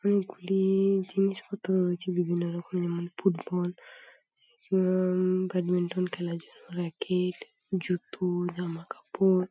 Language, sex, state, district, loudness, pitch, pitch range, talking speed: Bengali, female, West Bengal, Paschim Medinipur, -29 LUFS, 180 Hz, 175-190 Hz, 80 wpm